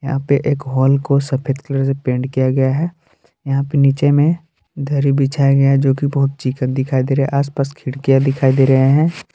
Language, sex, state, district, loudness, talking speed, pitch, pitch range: Hindi, male, Jharkhand, Palamu, -16 LUFS, 205 wpm, 135 Hz, 135-140 Hz